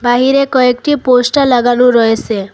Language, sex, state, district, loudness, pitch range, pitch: Bengali, female, Assam, Hailakandi, -11 LUFS, 240-265 Hz, 250 Hz